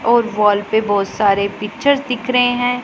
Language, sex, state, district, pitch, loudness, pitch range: Hindi, female, Punjab, Pathankot, 220 Hz, -16 LUFS, 205-245 Hz